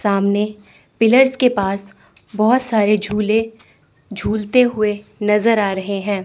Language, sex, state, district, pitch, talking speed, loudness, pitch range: Hindi, female, Chandigarh, Chandigarh, 210 Hz, 125 wpm, -17 LUFS, 205-225 Hz